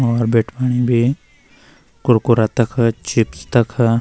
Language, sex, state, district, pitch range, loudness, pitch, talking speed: Garhwali, male, Uttarakhand, Uttarkashi, 115-125 Hz, -17 LUFS, 120 Hz, 105 wpm